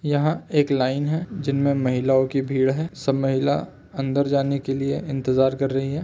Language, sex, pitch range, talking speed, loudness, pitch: Chhattisgarhi, male, 135-145 Hz, 190 wpm, -22 LUFS, 135 Hz